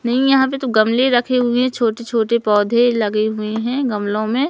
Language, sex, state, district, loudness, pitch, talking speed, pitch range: Hindi, male, Madhya Pradesh, Katni, -17 LUFS, 235 Hz, 200 wpm, 215-255 Hz